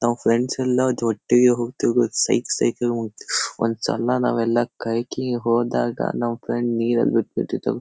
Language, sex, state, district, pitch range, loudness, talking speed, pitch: Kannada, male, Karnataka, Shimoga, 115-120 Hz, -21 LUFS, 125 wpm, 120 Hz